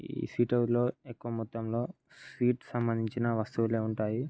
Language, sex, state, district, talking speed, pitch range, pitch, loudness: Telugu, male, Andhra Pradesh, Guntur, 110 wpm, 115-125 Hz, 120 Hz, -32 LUFS